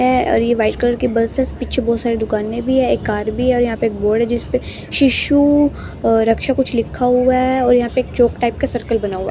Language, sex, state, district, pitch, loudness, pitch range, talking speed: Hindi, female, Bihar, West Champaran, 240 Hz, -16 LUFS, 230-255 Hz, 275 wpm